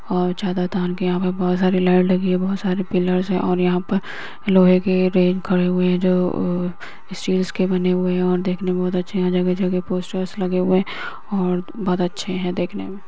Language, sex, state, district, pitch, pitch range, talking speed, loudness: Hindi, female, Uttar Pradesh, Etah, 185 Hz, 180-185 Hz, 215 wpm, -20 LUFS